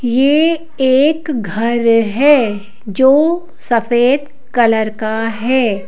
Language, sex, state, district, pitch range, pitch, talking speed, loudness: Hindi, female, Madhya Pradesh, Bhopal, 225-285 Hz, 245 Hz, 90 wpm, -14 LUFS